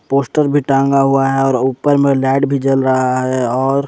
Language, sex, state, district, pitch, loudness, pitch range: Hindi, male, Jharkhand, Ranchi, 135 Hz, -14 LUFS, 130-140 Hz